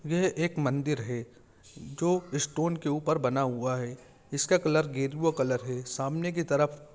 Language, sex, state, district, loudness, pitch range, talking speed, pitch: Hindi, male, Chhattisgarh, Kabirdham, -29 LUFS, 130-160 Hz, 165 wpm, 145 Hz